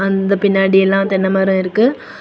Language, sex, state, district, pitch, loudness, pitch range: Tamil, female, Tamil Nadu, Kanyakumari, 195 Hz, -14 LUFS, 190-195 Hz